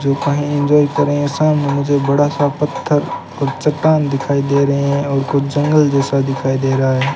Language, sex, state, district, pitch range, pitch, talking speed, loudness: Hindi, male, Rajasthan, Bikaner, 140-145 Hz, 140 Hz, 195 wpm, -15 LUFS